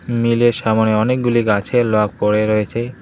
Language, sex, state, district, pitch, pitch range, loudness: Bengali, male, West Bengal, Cooch Behar, 110 Hz, 105-120 Hz, -16 LUFS